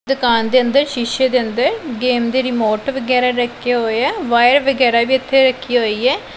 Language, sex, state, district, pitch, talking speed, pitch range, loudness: Punjabi, female, Punjab, Pathankot, 250 Hz, 190 wpm, 235-260 Hz, -15 LUFS